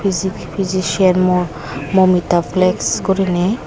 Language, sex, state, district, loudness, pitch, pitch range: Chakma, female, Tripura, Unakoti, -16 LUFS, 185 Hz, 175-190 Hz